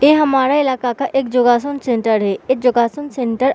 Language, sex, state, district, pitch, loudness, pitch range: Hindi, female, Uttar Pradesh, Budaun, 260 Hz, -16 LUFS, 240-275 Hz